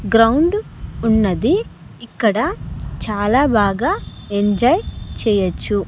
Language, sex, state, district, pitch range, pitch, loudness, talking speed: Telugu, male, Andhra Pradesh, Sri Satya Sai, 205-280 Hz, 225 Hz, -17 LUFS, 70 wpm